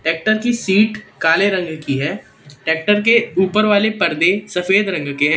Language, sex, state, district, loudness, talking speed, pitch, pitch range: Hindi, male, Madhya Pradesh, Katni, -16 LUFS, 180 wpm, 190 Hz, 160-210 Hz